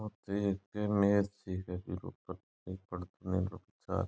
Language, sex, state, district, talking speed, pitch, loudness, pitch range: Marwari, male, Rajasthan, Nagaur, 190 wpm, 95 Hz, -36 LUFS, 95-100 Hz